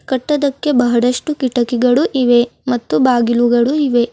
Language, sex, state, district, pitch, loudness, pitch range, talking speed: Kannada, female, Karnataka, Bidar, 250 Hz, -14 LUFS, 240-270 Hz, 100 wpm